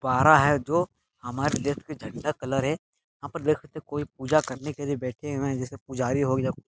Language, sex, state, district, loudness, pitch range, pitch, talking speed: Hindi, male, Bihar, Jahanabad, -26 LUFS, 130-150 Hz, 145 Hz, 235 wpm